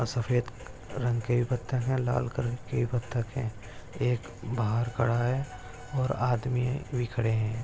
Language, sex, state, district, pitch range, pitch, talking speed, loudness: Hindi, male, Maharashtra, Dhule, 115-125 Hz, 120 Hz, 165 wpm, -30 LUFS